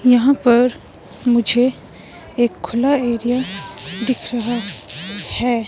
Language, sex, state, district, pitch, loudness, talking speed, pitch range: Hindi, female, Himachal Pradesh, Shimla, 240 Hz, -18 LUFS, 95 wpm, 205-245 Hz